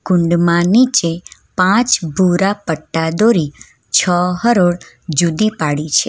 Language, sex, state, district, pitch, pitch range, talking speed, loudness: Gujarati, female, Gujarat, Valsad, 175 Hz, 165-195 Hz, 110 wpm, -14 LUFS